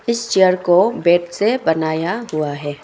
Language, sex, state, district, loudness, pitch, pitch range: Hindi, female, Arunachal Pradesh, Longding, -17 LUFS, 175 Hz, 160-215 Hz